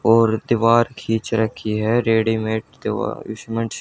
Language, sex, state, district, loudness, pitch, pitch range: Hindi, male, Haryana, Charkhi Dadri, -20 LUFS, 115 Hz, 110-115 Hz